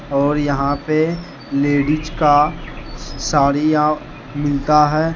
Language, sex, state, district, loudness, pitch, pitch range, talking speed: Hindi, male, Jharkhand, Deoghar, -17 LUFS, 150 Hz, 145-155 Hz, 95 wpm